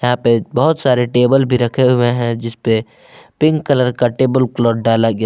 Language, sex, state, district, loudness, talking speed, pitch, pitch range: Hindi, male, Jharkhand, Palamu, -15 LUFS, 195 wpm, 125 Hz, 115-130 Hz